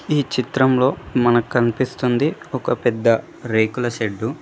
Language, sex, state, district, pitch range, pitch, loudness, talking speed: Telugu, male, Telangana, Mahabubabad, 115-130 Hz, 120 Hz, -19 LUFS, 120 wpm